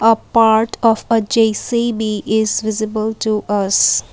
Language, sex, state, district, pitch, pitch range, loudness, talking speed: English, female, Assam, Kamrup Metropolitan, 220 Hz, 210-225 Hz, -16 LUFS, 130 wpm